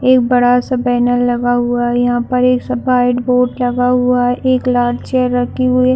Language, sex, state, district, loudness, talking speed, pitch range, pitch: Hindi, female, Chhattisgarh, Bilaspur, -14 LUFS, 220 wpm, 245-250 Hz, 245 Hz